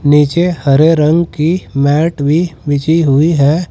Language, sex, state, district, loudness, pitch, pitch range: Hindi, male, Uttar Pradesh, Saharanpur, -12 LUFS, 155 Hz, 145-165 Hz